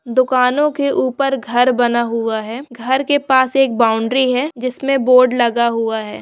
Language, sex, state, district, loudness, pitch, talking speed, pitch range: Hindi, female, Bihar, Bhagalpur, -15 LUFS, 255 Hz, 175 wpm, 235-270 Hz